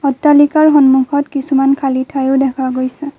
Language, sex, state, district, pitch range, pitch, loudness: Assamese, female, Assam, Kamrup Metropolitan, 265-285 Hz, 275 Hz, -12 LUFS